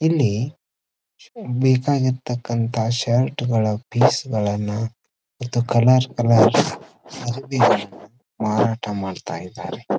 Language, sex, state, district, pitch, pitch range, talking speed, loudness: Kannada, male, Karnataka, Dharwad, 120 Hz, 110-130 Hz, 70 wpm, -20 LUFS